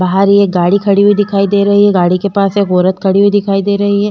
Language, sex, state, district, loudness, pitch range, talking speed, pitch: Hindi, female, Chhattisgarh, Korba, -11 LUFS, 195-200 Hz, 290 wpm, 200 Hz